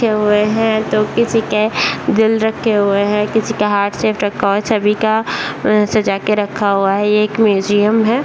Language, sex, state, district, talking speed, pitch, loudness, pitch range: Hindi, female, Bihar, Saharsa, 205 wpm, 210 Hz, -15 LUFS, 205-220 Hz